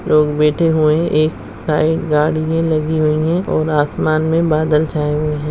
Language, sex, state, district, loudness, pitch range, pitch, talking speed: Hindi, female, Bihar, Madhepura, -16 LUFS, 150-160 Hz, 155 Hz, 185 wpm